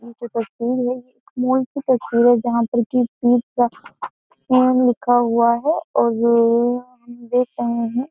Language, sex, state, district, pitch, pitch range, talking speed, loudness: Hindi, female, Uttar Pradesh, Jyotiba Phule Nagar, 245 Hz, 235-255 Hz, 155 wpm, -18 LUFS